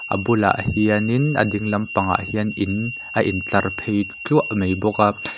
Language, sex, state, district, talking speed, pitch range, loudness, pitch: Mizo, male, Mizoram, Aizawl, 180 wpm, 100-110 Hz, -20 LUFS, 105 Hz